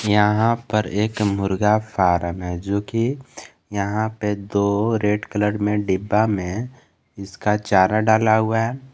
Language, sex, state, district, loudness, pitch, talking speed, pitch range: Hindi, male, Jharkhand, Garhwa, -20 LUFS, 105 Hz, 140 wpm, 100-110 Hz